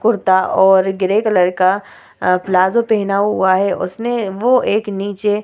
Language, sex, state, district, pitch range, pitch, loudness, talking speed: Hindi, female, Bihar, Vaishali, 185-210 Hz, 195 Hz, -15 LUFS, 155 wpm